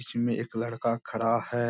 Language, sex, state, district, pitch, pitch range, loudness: Hindi, male, Bihar, Bhagalpur, 115 Hz, 115-120 Hz, -29 LUFS